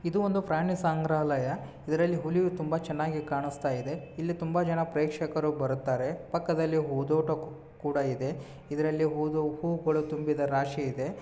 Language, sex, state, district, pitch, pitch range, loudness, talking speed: Kannada, male, Karnataka, Bijapur, 155 Hz, 145-165 Hz, -30 LUFS, 135 wpm